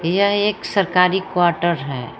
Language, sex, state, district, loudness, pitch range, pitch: Hindi, female, Jharkhand, Palamu, -18 LUFS, 170-200 Hz, 180 Hz